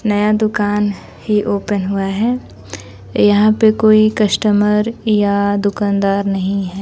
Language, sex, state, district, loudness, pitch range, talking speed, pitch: Hindi, female, Bihar, West Champaran, -15 LUFS, 195-215 Hz, 125 wpm, 205 Hz